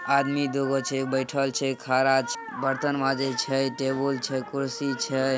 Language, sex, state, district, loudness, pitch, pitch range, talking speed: Hindi, male, Bihar, Samastipur, -26 LUFS, 135 Hz, 135-140 Hz, 145 wpm